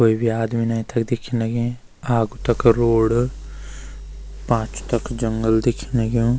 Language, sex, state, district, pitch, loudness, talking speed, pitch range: Garhwali, male, Uttarakhand, Uttarkashi, 115 Hz, -21 LUFS, 140 wpm, 115-120 Hz